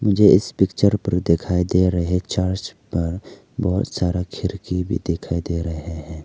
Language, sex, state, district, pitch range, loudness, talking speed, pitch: Hindi, male, Arunachal Pradesh, Lower Dibang Valley, 85-95 Hz, -21 LUFS, 165 wpm, 90 Hz